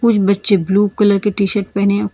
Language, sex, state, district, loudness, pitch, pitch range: Hindi, female, Karnataka, Bangalore, -15 LUFS, 200 Hz, 200-205 Hz